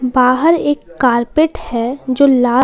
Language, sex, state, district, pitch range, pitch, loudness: Hindi, female, Jharkhand, Palamu, 250-285 Hz, 255 Hz, -14 LUFS